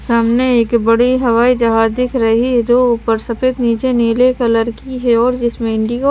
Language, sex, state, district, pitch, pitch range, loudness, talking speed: Hindi, female, Maharashtra, Washim, 235 Hz, 230-250 Hz, -14 LUFS, 195 wpm